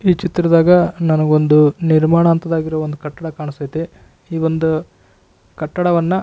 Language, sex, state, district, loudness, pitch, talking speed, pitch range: Kannada, male, Karnataka, Raichur, -15 LUFS, 160 Hz, 105 wpm, 150-170 Hz